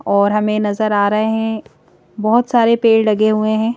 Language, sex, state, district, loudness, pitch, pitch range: Hindi, female, Madhya Pradesh, Bhopal, -15 LUFS, 215 Hz, 210-225 Hz